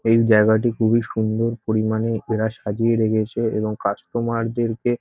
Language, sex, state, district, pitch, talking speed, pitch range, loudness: Bengali, male, West Bengal, North 24 Parganas, 115 Hz, 130 wpm, 110-115 Hz, -21 LUFS